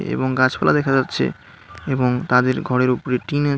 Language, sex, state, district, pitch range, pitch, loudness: Bengali, male, West Bengal, Alipurduar, 125-135 Hz, 130 Hz, -19 LUFS